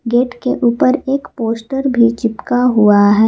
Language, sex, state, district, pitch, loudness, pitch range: Hindi, female, Jharkhand, Garhwa, 245 Hz, -14 LUFS, 230-260 Hz